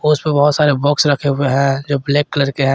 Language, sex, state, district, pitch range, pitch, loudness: Hindi, male, Jharkhand, Garhwa, 140-145 Hz, 145 Hz, -15 LUFS